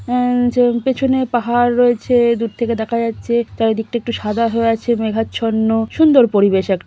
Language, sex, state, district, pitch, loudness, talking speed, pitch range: Bengali, female, West Bengal, Malda, 235 Hz, -16 LUFS, 130 wpm, 225-245 Hz